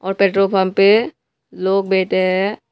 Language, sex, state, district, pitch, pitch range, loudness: Hindi, male, Tripura, West Tripura, 195 Hz, 190-195 Hz, -16 LUFS